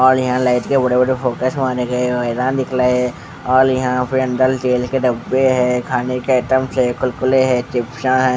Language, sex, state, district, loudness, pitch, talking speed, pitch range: Hindi, male, Bihar, West Champaran, -17 LUFS, 130 Hz, 210 wpm, 125-130 Hz